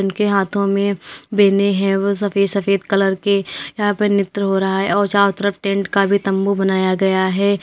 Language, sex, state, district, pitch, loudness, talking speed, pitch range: Hindi, female, Uttar Pradesh, Lalitpur, 200 Hz, -17 LUFS, 205 wpm, 195-200 Hz